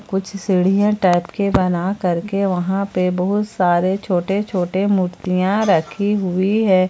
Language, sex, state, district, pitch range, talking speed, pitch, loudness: Hindi, female, Jharkhand, Palamu, 180-200 Hz, 140 wpm, 190 Hz, -18 LUFS